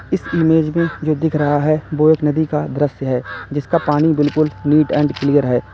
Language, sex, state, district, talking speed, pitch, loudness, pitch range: Hindi, male, Uttar Pradesh, Lalitpur, 210 wpm, 150 Hz, -16 LUFS, 145-160 Hz